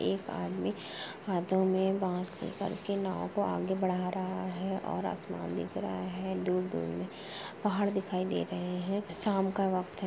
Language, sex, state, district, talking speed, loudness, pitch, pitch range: Hindi, female, Chhattisgarh, Rajnandgaon, 180 wpm, -34 LUFS, 185 Hz, 180-195 Hz